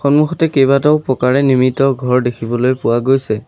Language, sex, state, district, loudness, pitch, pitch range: Assamese, male, Assam, Sonitpur, -14 LUFS, 130 Hz, 125-140 Hz